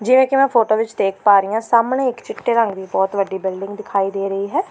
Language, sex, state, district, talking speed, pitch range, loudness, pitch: Punjabi, female, Delhi, New Delhi, 265 wpm, 195-235 Hz, -18 LUFS, 210 Hz